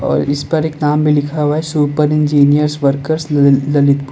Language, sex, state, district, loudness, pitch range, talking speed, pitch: Hindi, male, Uttar Pradesh, Lalitpur, -14 LUFS, 145-150 Hz, 190 wpm, 150 Hz